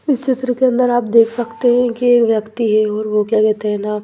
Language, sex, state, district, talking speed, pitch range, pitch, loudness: Hindi, female, Punjab, Pathankot, 265 wpm, 215-245 Hz, 230 Hz, -15 LUFS